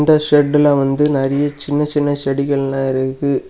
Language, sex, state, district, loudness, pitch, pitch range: Tamil, male, Tamil Nadu, Kanyakumari, -16 LUFS, 145 Hz, 135-145 Hz